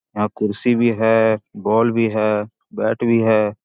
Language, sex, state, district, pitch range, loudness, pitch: Magahi, male, Bihar, Jahanabad, 105-115 Hz, -18 LUFS, 110 Hz